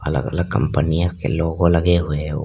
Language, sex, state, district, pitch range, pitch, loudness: Hindi, male, Arunachal Pradesh, Lower Dibang Valley, 75-85 Hz, 85 Hz, -18 LUFS